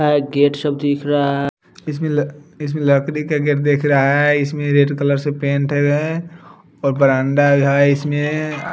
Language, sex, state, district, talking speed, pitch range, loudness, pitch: Hindi, male, Bihar, West Champaran, 165 wpm, 140-150 Hz, -17 LUFS, 145 Hz